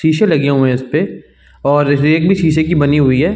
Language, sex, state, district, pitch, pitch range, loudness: Hindi, male, Chhattisgarh, Raigarh, 150 Hz, 140-160 Hz, -13 LUFS